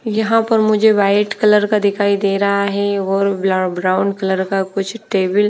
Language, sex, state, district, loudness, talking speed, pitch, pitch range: Hindi, female, Bihar, Patna, -16 LUFS, 195 wpm, 200 Hz, 195-210 Hz